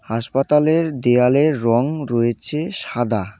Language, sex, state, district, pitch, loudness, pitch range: Bengali, male, West Bengal, Cooch Behar, 125 Hz, -17 LUFS, 115-150 Hz